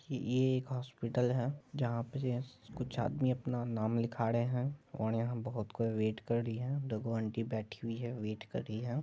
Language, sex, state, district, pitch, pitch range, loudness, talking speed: Hindi, male, Bihar, Madhepura, 120 Hz, 115-130 Hz, -36 LUFS, 215 wpm